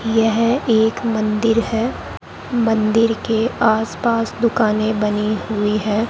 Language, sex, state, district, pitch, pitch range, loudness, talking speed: Hindi, male, Rajasthan, Bikaner, 225 Hz, 215-230 Hz, -18 LUFS, 120 wpm